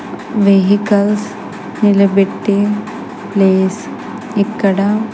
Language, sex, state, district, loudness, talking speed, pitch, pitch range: Telugu, female, Andhra Pradesh, Sri Satya Sai, -14 LUFS, 60 wpm, 205 Hz, 200-215 Hz